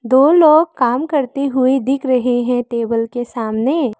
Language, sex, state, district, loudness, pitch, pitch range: Hindi, female, Arunachal Pradesh, Lower Dibang Valley, -15 LUFS, 255 Hz, 240-280 Hz